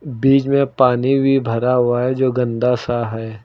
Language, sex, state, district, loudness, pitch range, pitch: Hindi, male, Uttar Pradesh, Lucknow, -17 LUFS, 120-135 Hz, 125 Hz